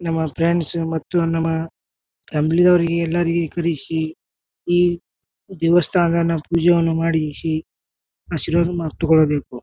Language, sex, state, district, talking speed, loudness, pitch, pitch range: Kannada, male, Karnataka, Bijapur, 85 wpm, -19 LUFS, 165 Hz, 155-170 Hz